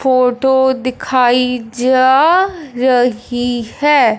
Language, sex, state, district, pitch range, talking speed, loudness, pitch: Hindi, male, Punjab, Fazilka, 245-265 Hz, 70 wpm, -13 LUFS, 255 Hz